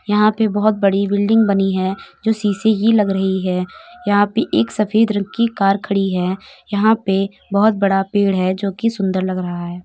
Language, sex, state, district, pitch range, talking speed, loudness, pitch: Bhojpuri, female, Uttar Pradesh, Gorakhpur, 190-220 Hz, 205 wpm, -17 LUFS, 200 Hz